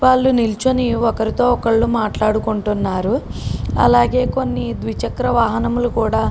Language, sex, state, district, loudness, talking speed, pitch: Telugu, female, Telangana, Karimnagar, -17 LUFS, 105 wpm, 220 Hz